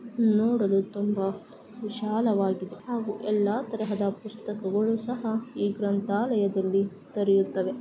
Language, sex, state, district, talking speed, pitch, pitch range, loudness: Kannada, female, Karnataka, Mysore, 90 wpm, 210 Hz, 200-225 Hz, -27 LUFS